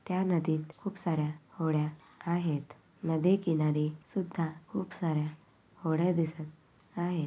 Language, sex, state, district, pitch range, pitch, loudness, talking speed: Marathi, female, Maharashtra, Sindhudurg, 155-175 Hz, 160 Hz, -33 LUFS, 115 wpm